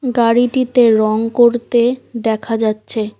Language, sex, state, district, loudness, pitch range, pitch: Bengali, female, West Bengal, Cooch Behar, -15 LUFS, 220-245 Hz, 235 Hz